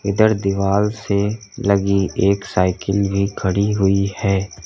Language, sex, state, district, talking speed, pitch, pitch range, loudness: Hindi, male, Uttar Pradesh, Lalitpur, 130 wpm, 100 Hz, 95-100 Hz, -18 LUFS